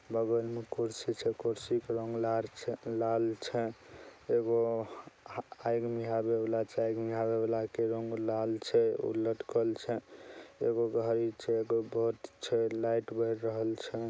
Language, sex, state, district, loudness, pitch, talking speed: Maithili, male, Bihar, Saharsa, -33 LUFS, 115 Hz, 155 wpm